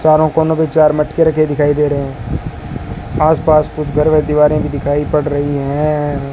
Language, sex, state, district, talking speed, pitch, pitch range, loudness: Hindi, male, Rajasthan, Bikaner, 190 wpm, 150 Hz, 145-155 Hz, -14 LUFS